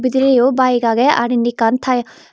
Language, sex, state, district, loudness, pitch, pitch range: Chakma, female, Tripura, Dhalai, -15 LUFS, 250 Hz, 240-260 Hz